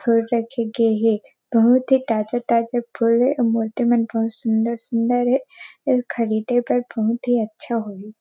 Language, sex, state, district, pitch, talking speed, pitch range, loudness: Chhattisgarhi, female, Chhattisgarh, Rajnandgaon, 235 Hz, 160 wpm, 225-245 Hz, -20 LUFS